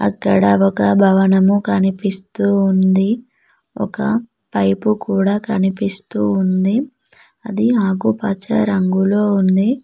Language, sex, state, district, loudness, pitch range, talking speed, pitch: Telugu, female, Telangana, Mahabubabad, -16 LUFS, 190-215 Hz, 85 wpm, 195 Hz